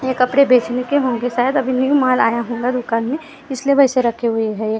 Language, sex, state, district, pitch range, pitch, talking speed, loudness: Hindi, female, Maharashtra, Gondia, 235-270 Hz, 250 Hz, 250 wpm, -17 LUFS